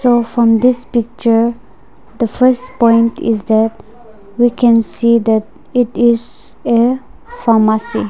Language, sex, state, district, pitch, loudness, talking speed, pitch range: English, female, Nagaland, Dimapur, 235 Hz, -13 LUFS, 125 wpm, 225-240 Hz